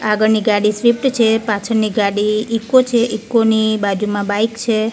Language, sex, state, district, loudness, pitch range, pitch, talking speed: Gujarati, female, Gujarat, Gandhinagar, -16 LUFS, 210-230 Hz, 220 Hz, 160 wpm